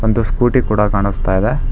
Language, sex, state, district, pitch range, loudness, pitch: Kannada, male, Karnataka, Bangalore, 105-120 Hz, -16 LUFS, 110 Hz